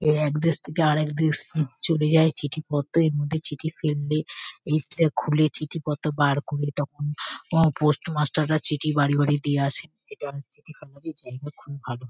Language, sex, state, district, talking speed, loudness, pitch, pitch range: Bengali, female, West Bengal, Kolkata, 170 wpm, -25 LUFS, 150 Hz, 145-155 Hz